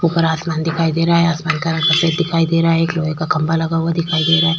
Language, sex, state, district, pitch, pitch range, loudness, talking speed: Hindi, female, Uttar Pradesh, Jyotiba Phule Nagar, 165 Hz, 160-165 Hz, -16 LUFS, 315 wpm